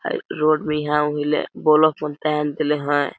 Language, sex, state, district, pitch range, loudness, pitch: Awadhi, male, Chhattisgarh, Balrampur, 150-155 Hz, -20 LUFS, 150 Hz